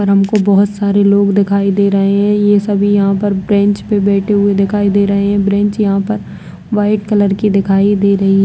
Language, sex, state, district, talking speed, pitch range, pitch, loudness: Kumaoni, female, Uttarakhand, Tehri Garhwal, 220 wpm, 200-205 Hz, 200 Hz, -12 LUFS